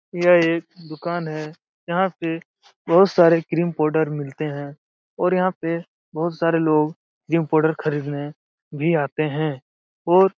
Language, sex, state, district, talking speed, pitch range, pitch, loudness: Hindi, male, Bihar, Supaul, 150 wpm, 155-170 Hz, 165 Hz, -21 LUFS